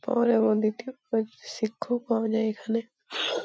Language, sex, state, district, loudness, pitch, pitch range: Bengali, female, West Bengal, Paschim Medinipur, -27 LUFS, 230 Hz, 220-250 Hz